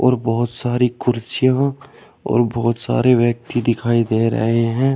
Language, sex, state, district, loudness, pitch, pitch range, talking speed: Hindi, male, Uttar Pradesh, Shamli, -18 LUFS, 120 Hz, 115-125 Hz, 145 wpm